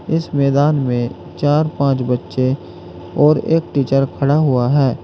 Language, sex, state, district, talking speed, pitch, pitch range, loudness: Hindi, male, Uttar Pradesh, Saharanpur, 145 wpm, 140 Hz, 125-145 Hz, -16 LUFS